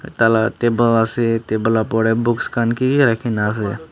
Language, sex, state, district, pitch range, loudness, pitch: Nagamese, male, Nagaland, Dimapur, 110-120 Hz, -17 LUFS, 115 Hz